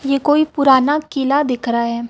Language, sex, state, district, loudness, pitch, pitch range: Hindi, female, Chhattisgarh, Raipur, -16 LUFS, 275 Hz, 250-290 Hz